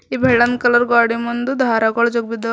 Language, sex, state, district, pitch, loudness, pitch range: Kannada, female, Karnataka, Bidar, 235 Hz, -16 LUFS, 230-245 Hz